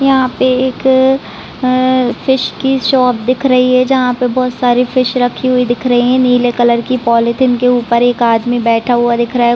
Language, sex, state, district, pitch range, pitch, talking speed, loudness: Hindi, female, Chhattisgarh, Raigarh, 240-255 Hz, 250 Hz, 215 wpm, -12 LUFS